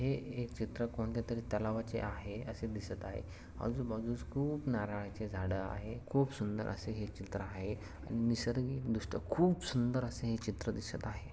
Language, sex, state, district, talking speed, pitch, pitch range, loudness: Marathi, male, Maharashtra, Sindhudurg, 155 wpm, 110 Hz, 100-120 Hz, -38 LUFS